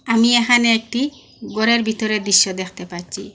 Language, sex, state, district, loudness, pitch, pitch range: Bengali, female, Assam, Hailakandi, -16 LUFS, 225 Hz, 200-240 Hz